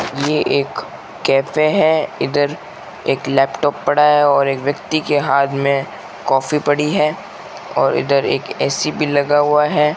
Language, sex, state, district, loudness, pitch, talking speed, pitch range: Hindi, male, Rajasthan, Bikaner, -16 LUFS, 145 Hz, 155 wpm, 140-150 Hz